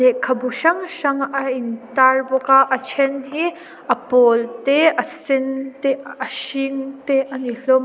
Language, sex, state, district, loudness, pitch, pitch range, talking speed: Mizo, female, Mizoram, Aizawl, -19 LUFS, 270 Hz, 260-280 Hz, 185 wpm